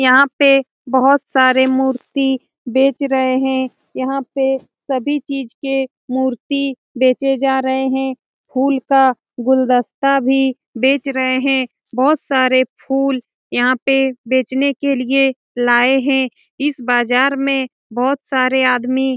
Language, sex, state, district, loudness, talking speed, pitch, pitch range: Hindi, female, Bihar, Lakhisarai, -16 LUFS, 130 wpm, 265 Hz, 255-275 Hz